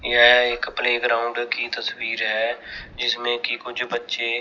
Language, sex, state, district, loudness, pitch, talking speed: Hindi, male, Chandigarh, Chandigarh, -21 LUFS, 120 Hz, 150 wpm